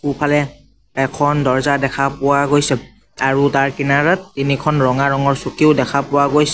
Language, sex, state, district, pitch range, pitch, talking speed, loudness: Assamese, male, Assam, Sonitpur, 135-145 Hz, 140 Hz, 145 wpm, -16 LUFS